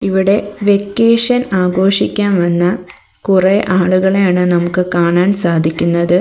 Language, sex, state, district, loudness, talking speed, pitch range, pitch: Malayalam, female, Kerala, Kollam, -13 LUFS, 85 wpm, 175-200 Hz, 185 Hz